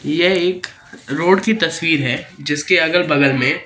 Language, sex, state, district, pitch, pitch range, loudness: Hindi, male, Madhya Pradesh, Katni, 165 Hz, 145-180 Hz, -16 LUFS